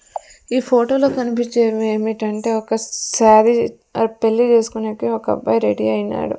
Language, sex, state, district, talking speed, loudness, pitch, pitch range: Telugu, female, Andhra Pradesh, Sri Satya Sai, 115 wpm, -17 LUFS, 225 Hz, 150-235 Hz